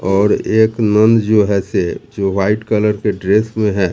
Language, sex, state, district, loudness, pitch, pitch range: Hindi, male, Bihar, Katihar, -15 LUFS, 105 Hz, 100-110 Hz